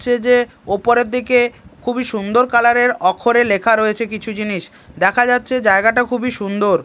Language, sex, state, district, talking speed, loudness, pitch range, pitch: Bengali, male, Odisha, Malkangiri, 160 wpm, -16 LUFS, 210-245 Hz, 240 Hz